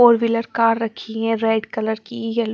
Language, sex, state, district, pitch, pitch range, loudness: Hindi, female, Chandigarh, Chandigarh, 225 Hz, 220-230 Hz, -20 LUFS